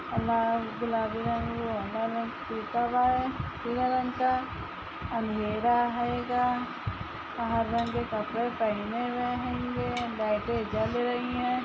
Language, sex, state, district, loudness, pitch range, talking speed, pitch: Hindi, female, Uttar Pradesh, Budaun, -30 LUFS, 225-250 Hz, 100 wpm, 240 Hz